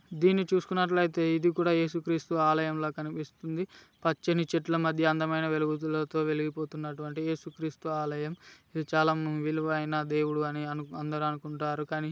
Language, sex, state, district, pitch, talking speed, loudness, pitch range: Telugu, male, Telangana, Nalgonda, 155 Hz, 140 wpm, -30 LUFS, 150-165 Hz